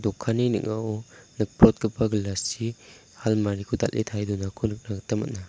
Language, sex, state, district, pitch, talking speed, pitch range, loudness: Garo, male, Meghalaya, South Garo Hills, 110 Hz, 140 wpm, 100-115 Hz, -26 LUFS